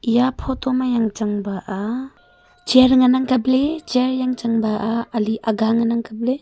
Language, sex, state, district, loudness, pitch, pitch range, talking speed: Wancho, female, Arunachal Pradesh, Longding, -19 LUFS, 235 Hz, 220-255 Hz, 205 wpm